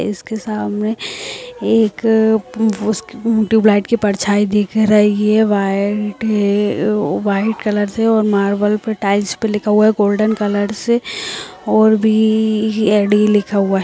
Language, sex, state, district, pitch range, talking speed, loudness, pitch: Hindi, female, Bihar, Samastipur, 205-220 Hz, 135 wpm, -15 LUFS, 215 Hz